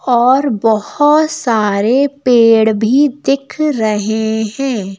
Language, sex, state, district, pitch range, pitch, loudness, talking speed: Hindi, female, Madhya Pradesh, Bhopal, 220-275 Hz, 240 Hz, -13 LUFS, 95 wpm